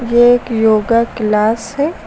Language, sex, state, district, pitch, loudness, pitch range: Hindi, female, Uttar Pradesh, Lucknow, 230 Hz, -13 LUFS, 220-240 Hz